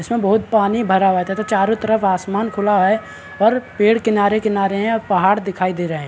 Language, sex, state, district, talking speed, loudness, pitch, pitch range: Hindi, male, Bihar, Araria, 215 wpm, -17 LUFS, 205 Hz, 195-220 Hz